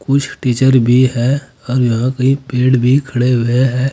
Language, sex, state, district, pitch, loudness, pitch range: Hindi, male, Uttar Pradesh, Saharanpur, 130 Hz, -14 LUFS, 125-135 Hz